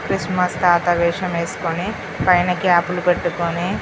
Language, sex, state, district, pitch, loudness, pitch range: Telugu, female, Telangana, Karimnagar, 180 Hz, -19 LUFS, 170-180 Hz